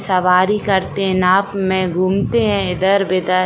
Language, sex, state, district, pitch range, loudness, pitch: Hindi, female, Bihar, Saran, 185-195 Hz, -16 LUFS, 190 Hz